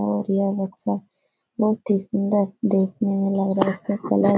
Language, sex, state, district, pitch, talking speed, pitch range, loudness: Hindi, female, Bihar, Jahanabad, 195 Hz, 190 wpm, 190-205 Hz, -23 LUFS